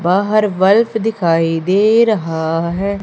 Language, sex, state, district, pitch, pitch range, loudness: Hindi, female, Madhya Pradesh, Umaria, 195 Hz, 165-215 Hz, -14 LUFS